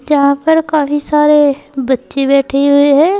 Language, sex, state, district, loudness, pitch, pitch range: Hindi, female, Uttar Pradesh, Saharanpur, -12 LUFS, 290 Hz, 280-300 Hz